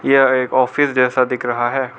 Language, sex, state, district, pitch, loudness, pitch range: Hindi, male, Arunachal Pradesh, Lower Dibang Valley, 130 Hz, -16 LUFS, 125-135 Hz